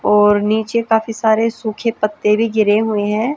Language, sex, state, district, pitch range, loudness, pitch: Hindi, female, Haryana, Jhajjar, 210-225 Hz, -16 LUFS, 220 Hz